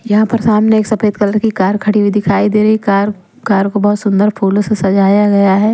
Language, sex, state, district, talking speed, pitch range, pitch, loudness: Hindi, female, Punjab, Pathankot, 260 wpm, 200-215 Hz, 205 Hz, -12 LUFS